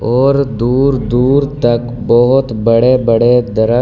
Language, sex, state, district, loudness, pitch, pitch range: Hindi, male, Delhi, New Delhi, -12 LUFS, 120 Hz, 115-130 Hz